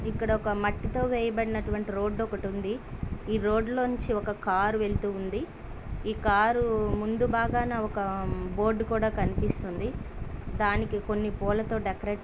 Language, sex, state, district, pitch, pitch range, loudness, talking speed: Telugu, female, Andhra Pradesh, Chittoor, 215 Hz, 205-225 Hz, -29 LUFS, 130 wpm